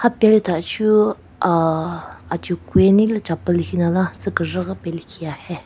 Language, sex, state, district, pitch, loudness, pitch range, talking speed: Rengma, female, Nagaland, Kohima, 175 Hz, -19 LUFS, 170-205 Hz, 85 wpm